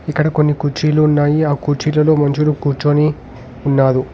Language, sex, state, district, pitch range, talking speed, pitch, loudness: Telugu, male, Telangana, Hyderabad, 140-150 Hz, 130 wpm, 145 Hz, -15 LUFS